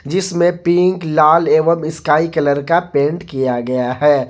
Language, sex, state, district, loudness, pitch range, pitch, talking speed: Hindi, male, Jharkhand, Garhwa, -15 LUFS, 140-175 Hz, 155 Hz, 140 wpm